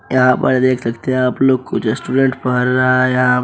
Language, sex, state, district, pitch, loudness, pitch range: Hindi, male, Bihar, Araria, 130 Hz, -15 LUFS, 125-130 Hz